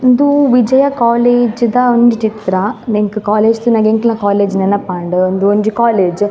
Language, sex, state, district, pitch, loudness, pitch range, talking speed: Tulu, female, Karnataka, Dakshina Kannada, 220 Hz, -12 LUFS, 205-240 Hz, 145 wpm